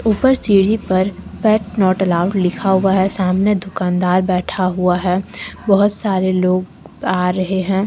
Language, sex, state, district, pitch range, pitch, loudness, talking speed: Hindi, female, Jharkhand, Deoghar, 185-200 Hz, 190 Hz, -16 LUFS, 150 wpm